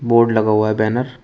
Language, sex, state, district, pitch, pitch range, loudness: Hindi, male, Uttar Pradesh, Shamli, 115 Hz, 110-120 Hz, -16 LUFS